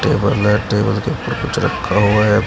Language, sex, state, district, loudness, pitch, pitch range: Hindi, male, Uttar Pradesh, Shamli, -16 LUFS, 105 Hz, 105-130 Hz